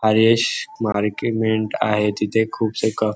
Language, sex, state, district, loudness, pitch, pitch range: Marathi, male, Maharashtra, Nagpur, -20 LUFS, 110 Hz, 105-110 Hz